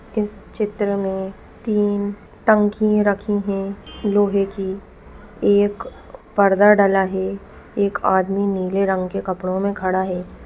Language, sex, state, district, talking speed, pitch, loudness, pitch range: Hindi, female, Bihar, East Champaran, 125 wpm, 200 Hz, -20 LUFS, 190-205 Hz